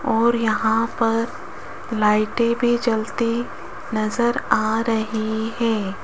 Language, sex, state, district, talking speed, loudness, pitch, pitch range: Hindi, female, Rajasthan, Jaipur, 100 wpm, -21 LUFS, 225 Hz, 220-235 Hz